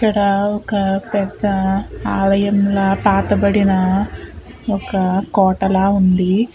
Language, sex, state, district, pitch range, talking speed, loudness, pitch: Telugu, female, Andhra Pradesh, Chittoor, 195-205 Hz, 90 wpm, -16 LUFS, 195 Hz